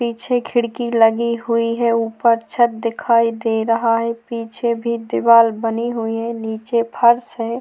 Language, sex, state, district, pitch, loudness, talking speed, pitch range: Hindi, female, Maharashtra, Aurangabad, 230 Hz, -18 LUFS, 160 wpm, 230-235 Hz